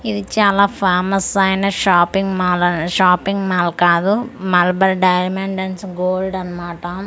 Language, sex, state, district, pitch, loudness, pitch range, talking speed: Telugu, female, Andhra Pradesh, Manyam, 185 Hz, -16 LUFS, 180-195 Hz, 125 wpm